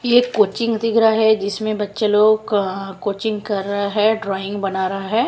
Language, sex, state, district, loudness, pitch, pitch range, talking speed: Hindi, female, Punjab, Kapurthala, -18 LUFS, 210 Hz, 200-220 Hz, 195 wpm